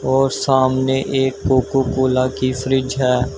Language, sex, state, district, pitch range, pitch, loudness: Hindi, male, Uttar Pradesh, Shamli, 130-135 Hz, 130 Hz, -17 LUFS